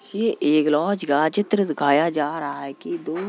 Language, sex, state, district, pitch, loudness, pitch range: Hindi, male, Uttar Pradesh, Jalaun, 155 Hz, -21 LUFS, 145-205 Hz